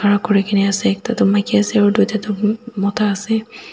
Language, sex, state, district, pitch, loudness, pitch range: Nagamese, female, Nagaland, Dimapur, 210 Hz, -17 LUFS, 200-220 Hz